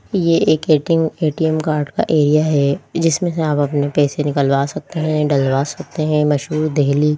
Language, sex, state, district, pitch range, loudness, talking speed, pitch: Hindi, female, Delhi, New Delhi, 145-160 Hz, -17 LUFS, 175 wpm, 150 Hz